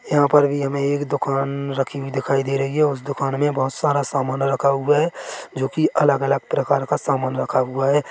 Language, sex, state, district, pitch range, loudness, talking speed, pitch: Hindi, male, Chhattisgarh, Bilaspur, 135-145 Hz, -20 LUFS, 215 wpm, 140 Hz